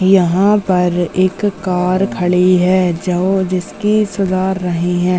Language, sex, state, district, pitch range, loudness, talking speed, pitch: Hindi, female, Maharashtra, Dhule, 180-195 Hz, -14 LUFS, 115 wpm, 185 Hz